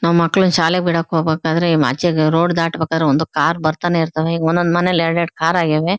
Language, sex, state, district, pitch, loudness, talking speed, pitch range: Kannada, female, Karnataka, Shimoga, 165 Hz, -16 LUFS, 180 wpm, 160-170 Hz